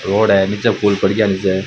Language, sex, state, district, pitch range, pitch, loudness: Rajasthani, male, Rajasthan, Churu, 95-105 Hz, 100 Hz, -15 LUFS